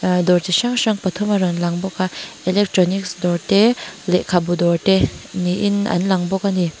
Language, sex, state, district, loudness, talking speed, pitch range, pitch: Mizo, female, Mizoram, Aizawl, -18 LUFS, 165 wpm, 180-200 Hz, 185 Hz